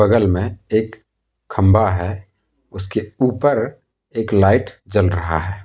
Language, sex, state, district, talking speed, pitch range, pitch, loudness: Hindi, male, Jharkhand, Deoghar, 125 wpm, 95-110 Hz, 100 Hz, -18 LUFS